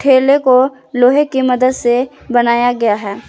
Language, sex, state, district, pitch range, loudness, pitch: Hindi, female, Jharkhand, Garhwa, 240-265 Hz, -13 LUFS, 255 Hz